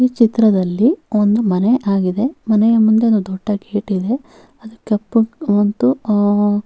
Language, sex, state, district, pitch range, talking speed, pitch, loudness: Kannada, female, Karnataka, Bellary, 205-230 Hz, 145 wpm, 215 Hz, -16 LUFS